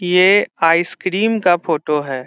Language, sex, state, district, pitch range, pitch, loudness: Hindi, male, Bihar, Saran, 165-190 Hz, 180 Hz, -15 LUFS